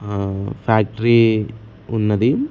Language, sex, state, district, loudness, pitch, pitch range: Telugu, male, Andhra Pradesh, Sri Satya Sai, -18 LUFS, 110 Hz, 105-115 Hz